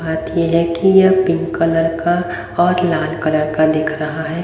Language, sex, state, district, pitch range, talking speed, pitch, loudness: Hindi, female, Haryana, Rohtak, 160-175 Hz, 200 wpm, 165 Hz, -16 LUFS